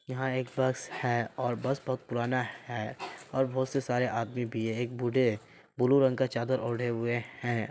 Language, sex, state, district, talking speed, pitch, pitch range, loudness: Hindi, male, Bihar, Saharsa, 200 wpm, 125 Hz, 120-130 Hz, -31 LUFS